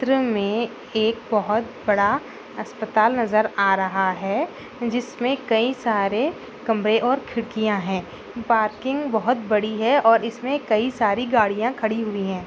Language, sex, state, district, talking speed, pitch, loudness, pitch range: Hindi, female, Maharashtra, Pune, 150 wpm, 225 Hz, -22 LUFS, 210-240 Hz